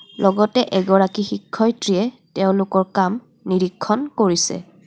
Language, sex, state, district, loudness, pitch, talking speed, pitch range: Assamese, female, Assam, Kamrup Metropolitan, -19 LUFS, 195 Hz, 85 wpm, 190-220 Hz